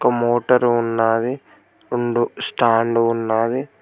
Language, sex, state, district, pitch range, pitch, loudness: Telugu, male, Telangana, Mahabubabad, 115-120 Hz, 120 Hz, -19 LUFS